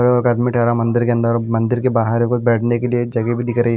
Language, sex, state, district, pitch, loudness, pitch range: Hindi, male, Punjab, Kapurthala, 120 Hz, -17 LUFS, 115-120 Hz